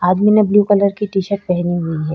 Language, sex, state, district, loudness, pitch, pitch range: Hindi, female, Uttar Pradesh, Budaun, -15 LUFS, 195 Hz, 175-205 Hz